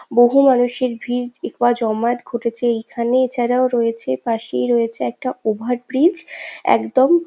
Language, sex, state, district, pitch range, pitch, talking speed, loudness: Bengali, female, West Bengal, Jhargram, 235-255 Hz, 240 Hz, 125 wpm, -18 LUFS